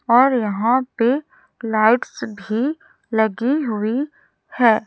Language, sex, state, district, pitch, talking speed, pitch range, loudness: Hindi, female, Chhattisgarh, Raipur, 240 Hz, 100 wpm, 220-265 Hz, -19 LUFS